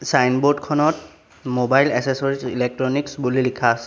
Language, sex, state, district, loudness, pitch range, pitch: Assamese, male, Assam, Sonitpur, -20 LUFS, 125-145 Hz, 130 Hz